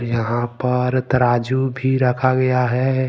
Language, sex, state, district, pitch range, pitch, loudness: Hindi, male, Jharkhand, Ranchi, 120-130 Hz, 125 Hz, -19 LUFS